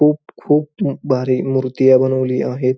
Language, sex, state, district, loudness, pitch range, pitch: Marathi, male, Maharashtra, Pune, -16 LUFS, 130-145 Hz, 130 Hz